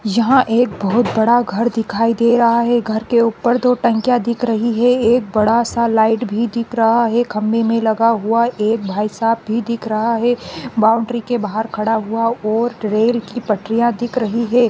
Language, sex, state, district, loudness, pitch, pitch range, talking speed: Hindi, female, Rajasthan, Nagaur, -16 LUFS, 230 Hz, 220-240 Hz, 190 wpm